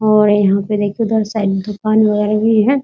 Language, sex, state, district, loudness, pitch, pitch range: Hindi, female, Bihar, Muzaffarpur, -15 LUFS, 215 Hz, 205-220 Hz